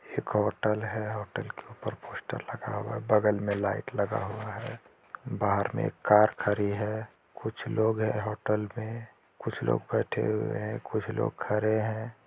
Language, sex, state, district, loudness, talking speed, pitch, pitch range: Hindi, male, Jharkhand, Jamtara, -30 LUFS, 175 wpm, 110 Hz, 105-110 Hz